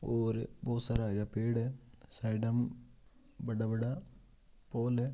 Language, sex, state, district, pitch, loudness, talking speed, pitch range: Marwari, male, Rajasthan, Nagaur, 115 Hz, -36 LUFS, 115 wpm, 115-120 Hz